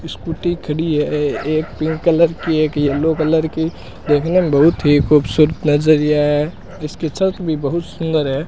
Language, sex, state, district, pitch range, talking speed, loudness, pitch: Hindi, male, Rajasthan, Bikaner, 150-165 Hz, 170 wpm, -16 LUFS, 155 Hz